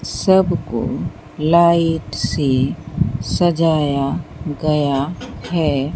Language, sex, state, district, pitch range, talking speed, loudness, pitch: Hindi, female, Bihar, Katihar, 135-165 Hz, 60 wpm, -18 LUFS, 150 Hz